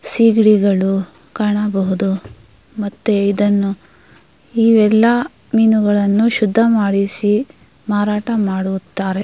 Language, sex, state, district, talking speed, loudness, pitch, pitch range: Kannada, female, Karnataka, Mysore, 65 wpm, -15 LUFS, 205 Hz, 195-220 Hz